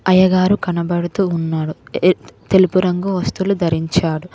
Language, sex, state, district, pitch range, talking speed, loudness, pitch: Telugu, female, Telangana, Mahabubabad, 170-185 Hz, 110 wpm, -17 LUFS, 180 Hz